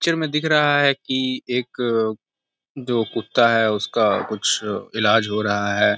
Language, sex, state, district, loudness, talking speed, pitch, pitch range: Hindi, male, Uttar Pradesh, Gorakhpur, -20 LUFS, 170 wpm, 125 Hz, 110-140 Hz